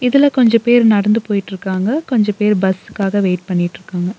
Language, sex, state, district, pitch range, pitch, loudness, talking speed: Tamil, female, Tamil Nadu, Nilgiris, 190-230 Hz, 205 Hz, -15 LUFS, 145 wpm